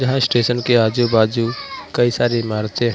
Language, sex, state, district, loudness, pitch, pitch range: Hindi, male, Maharashtra, Mumbai Suburban, -17 LUFS, 120 Hz, 115-120 Hz